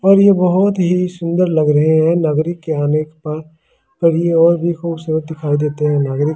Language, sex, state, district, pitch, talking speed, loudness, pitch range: Hindi, male, Delhi, New Delhi, 165 Hz, 225 wpm, -15 LUFS, 155-175 Hz